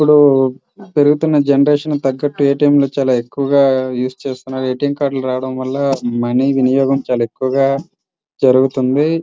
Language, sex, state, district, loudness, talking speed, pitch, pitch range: Telugu, male, Andhra Pradesh, Srikakulam, -15 LUFS, 155 wpm, 135 Hz, 130-145 Hz